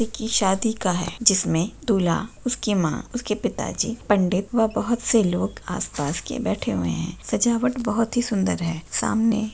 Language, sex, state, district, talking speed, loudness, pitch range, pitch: Hindi, female, West Bengal, Purulia, 165 wpm, -23 LUFS, 185-230 Hz, 220 Hz